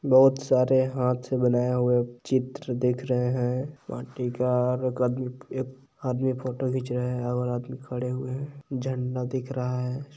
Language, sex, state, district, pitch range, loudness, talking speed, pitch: Hindi, male, Chhattisgarh, Balrampur, 125-130 Hz, -27 LUFS, 185 wpm, 125 Hz